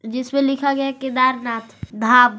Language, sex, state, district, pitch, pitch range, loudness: Hindi, female, Jharkhand, Garhwa, 255 Hz, 240-275 Hz, -19 LUFS